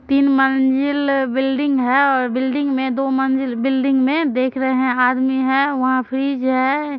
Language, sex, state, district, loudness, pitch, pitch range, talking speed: Maithili, female, Bihar, Supaul, -17 LUFS, 265 Hz, 260-275 Hz, 165 wpm